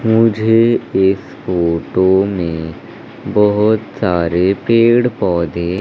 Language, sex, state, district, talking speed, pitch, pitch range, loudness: Hindi, male, Madhya Pradesh, Umaria, 80 wpm, 95 Hz, 85-110 Hz, -14 LUFS